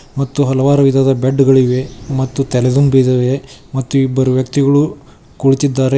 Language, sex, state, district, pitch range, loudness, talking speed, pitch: Kannada, male, Karnataka, Koppal, 130-140 Hz, -14 LUFS, 110 wpm, 135 Hz